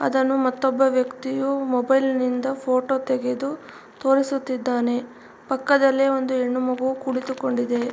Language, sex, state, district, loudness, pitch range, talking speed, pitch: Kannada, female, Karnataka, Mysore, -22 LUFS, 255-270 Hz, 100 wpm, 260 Hz